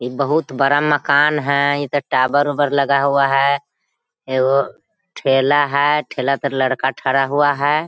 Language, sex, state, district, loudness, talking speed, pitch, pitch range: Hindi, female, Bihar, Sitamarhi, -17 LUFS, 160 wpm, 140 Hz, 135-145 Hz